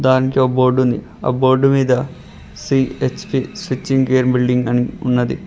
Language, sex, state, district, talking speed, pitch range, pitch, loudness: Telugu, male, Telangana, Mahabubabad, 130 wpm, 125-130 Hz, 130 Hz, -16 LUFS